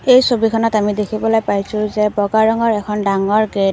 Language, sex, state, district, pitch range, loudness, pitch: Assamese, female, Assam, Kamrup Metropolitan, 205-225 Hz, -16 LUFS, 215 Hz